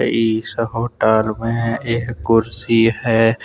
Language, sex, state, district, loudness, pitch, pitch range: Hindi, male, Jharkhand, Deoghar, -17 LUFS, 115 Hz, 110-115 Hz